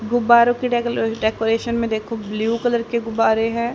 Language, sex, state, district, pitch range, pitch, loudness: Hindi, female, Haryana, Charkhi Dadri, 225-235 Hz, 230 Hz, -19 LUFS